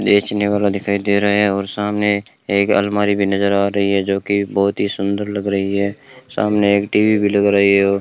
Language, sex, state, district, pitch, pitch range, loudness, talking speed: Hindi, male, Rajasthan, Bikaner, 100 Hz, 100-105 Hz, -17 LUFS, 240 wpm